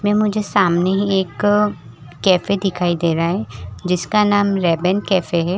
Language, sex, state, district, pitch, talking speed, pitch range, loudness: Hindi, female, Chhattisgarh, Rajnandgaon, 185 Hz, 160 wpm, 170-205 Hz, -17 LUFS